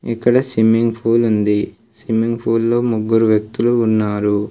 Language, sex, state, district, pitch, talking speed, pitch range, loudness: Telugu, male, Telangana, Komaram Bheem, 115 Hz, 135 wpm, 110-115 Hz, -16 LUFS